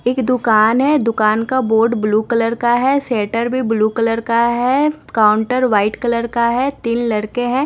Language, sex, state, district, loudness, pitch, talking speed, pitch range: Hindi, female, Bihar, Patna, -16 LUFS, 235 Hz, 190 wpm, 225-255 Hz